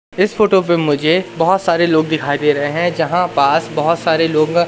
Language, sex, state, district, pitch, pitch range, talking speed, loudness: Hindi, male, Madhya Pradesh, Katni, 165 Hz, 155-175 Hz, 205 wpm, -15 LUFS